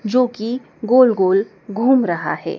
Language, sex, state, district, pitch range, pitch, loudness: Hindi, female, Madhya Pradesh, Dhar, 210-255 Hz, 230 Hz, -17 LUFS